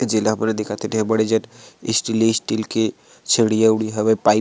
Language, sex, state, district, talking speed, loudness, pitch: Chhattisgarhi, male, Chhattisgarh, Sarguja, 230 wpm, -19 LUFS, 110 Hz